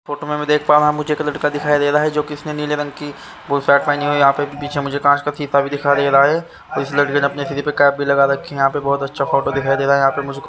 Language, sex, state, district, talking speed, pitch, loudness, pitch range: Hindi, male, Haryana, Charkhi Dadri, 315 wpm, 145 Hz, -17 LUFS, 140-150 Hz